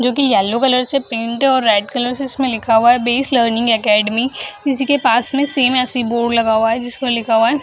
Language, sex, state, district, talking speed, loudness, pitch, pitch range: Hindi, female, Bihar, Jahanabad, 260 wpm, -15 LUFS, 245 Hz, 230-265 Hz